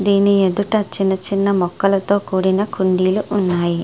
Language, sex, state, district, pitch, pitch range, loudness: Telugu, female, Andhra Pradesh, Srikakulam, 195 Hz, 185-200 Hz, -17 LUFS